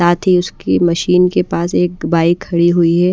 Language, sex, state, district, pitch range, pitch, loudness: Hindi, female, Odisha, Malkangiri, 165-180 Hz, 175 Hz, -14 LUFS